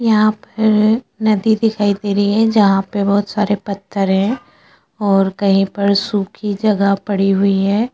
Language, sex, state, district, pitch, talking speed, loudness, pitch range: Hindi, female, Chhattisgarh, Sukma, 205 Hz, 160 wpm, -16 LUFS, 200-215 Hz